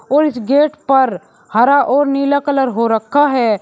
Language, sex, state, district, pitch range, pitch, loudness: Hindi, male, Uttar Pradesh, Shamli, 235-285 Hz, 275 Hz, -14 LUFS